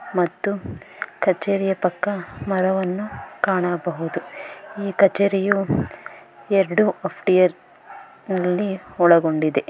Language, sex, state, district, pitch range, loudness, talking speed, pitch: Kannada, female, Karnataka, Bangalore, 180-200 Hz, -21 LUFS, 70 wpm, 190 Hz